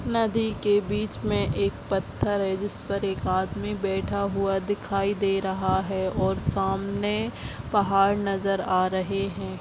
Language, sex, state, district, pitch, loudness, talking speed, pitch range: Hindi, female, Bihar, Bhagalpur, 195 Hz, -26 LUFS, 145 wpm, 190-205 Hz